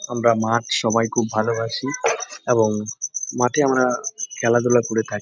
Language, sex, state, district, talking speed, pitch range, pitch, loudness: Bengali, male, West Bengal, Jhargram, 125 wpm, 110-125 Hz, 115 Hz, -21 LUFS